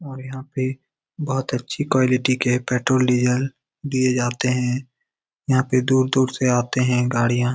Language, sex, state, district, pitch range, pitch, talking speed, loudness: Hindi, male, Bihar, Lakhisarai, 125-130 Hz, 130 Hz, 150 wpm, -21 LUFS